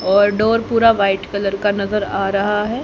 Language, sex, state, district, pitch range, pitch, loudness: Hindi, female, Haryana, Jhajjar, 195-220 Hz, 205 Hz, -17 LUFS